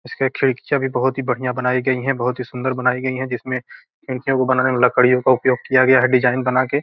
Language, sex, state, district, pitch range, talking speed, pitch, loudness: Hindi, male, Bihar, Gopalganj, 125-130 Hz, 270 wpm, 130 Hz, -18 LUFS